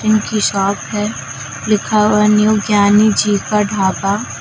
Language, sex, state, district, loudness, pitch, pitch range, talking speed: Hindi, female, Uttar Pradesh, Lucknow, -14 LUFS, 210 Hz, 195-210 Hz, 150 wpm